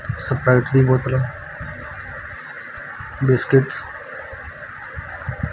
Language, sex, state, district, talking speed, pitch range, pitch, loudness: Punjabi, male, Punjab, Kapurthala, 65 wpm, 125-130 Hz, 130 Hz, -20 LUFS